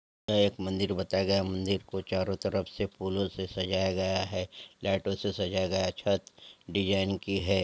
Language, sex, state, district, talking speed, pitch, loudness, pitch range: Angika, male, Bihar, Samastipur, 190 wpm, 95 Hz, -31 LUFS, 95-100 Hz